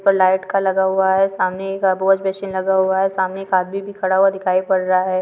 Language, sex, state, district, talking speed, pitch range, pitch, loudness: Hindi, female, Chhattisgarh, Bastar, 255 wpm, 185-195 Hz, 190 Hz, -18 LUFS